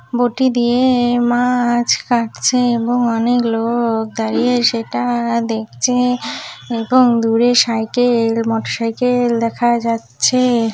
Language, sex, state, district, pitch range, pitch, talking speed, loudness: Bengali, female, West Bengal, Paschim Medinipur, 230-245 Hz, 240 Hz, 90 wpm, -16 LUFS